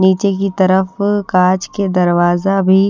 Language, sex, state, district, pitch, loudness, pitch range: Hindi, female, Haryana, Rohtak, 190 Hz, -14 LUFS, 185-195 Hz